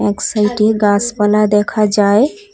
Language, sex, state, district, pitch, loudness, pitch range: Bengali, female, West Bengal, Cooch Behar, 210 Hz, -13 LUFS, 205-215 Hz